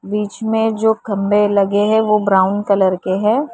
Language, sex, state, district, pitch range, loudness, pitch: Hindi, female, Maharashtra, Mumbai Suburban, 200-220 Hz, -16 LUFS, 205 Hz